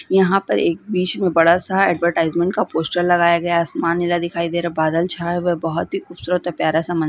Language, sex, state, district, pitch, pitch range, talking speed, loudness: Hindi, female, Chhattisgarh, Sukma, 170 Hz, 170-180 Hz, 255 wpm, -18 LUFS